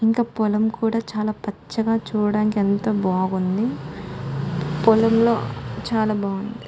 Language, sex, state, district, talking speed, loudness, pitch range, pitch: Telugu, female, Telangana, Karimnagar, 100 wpm, -22 LUFS, 190-225 Hz, 210 Hz